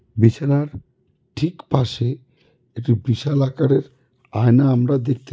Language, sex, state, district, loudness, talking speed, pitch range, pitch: Bengali, male, West Bengal, Cooch Behar, -19 LUFS, 100 wpm, 120-140 Hz, 130 Hz